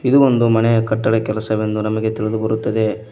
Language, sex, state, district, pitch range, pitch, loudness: Kannada, male, Karnataka, Koppal, 110-115 Hz, 110 Hz, -17 LUFS